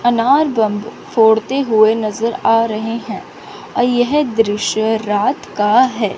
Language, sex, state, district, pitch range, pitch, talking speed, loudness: Hindi, female, Chandigarh, Chandigarh, 215-245 Hz, 225 Hz, 135 wpm, -15 LUFS